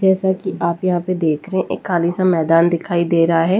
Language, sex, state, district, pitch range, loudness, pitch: Hindi, female, Delhi, New Delhi, 165-185 Hz, -17 LUFS, 175 Hz